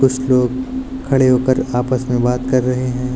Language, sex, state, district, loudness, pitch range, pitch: Hindi, male, Uttar Pradesh, Lucknow, -17 LUFS, 125-130 Hz, 130 Hz